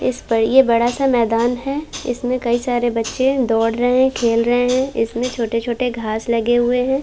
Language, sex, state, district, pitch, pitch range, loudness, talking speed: Hindi, female, Uttar Pradesh, Varanasi, 240 Hz, 230-255 Hz, -18 LUFS, 195 wpm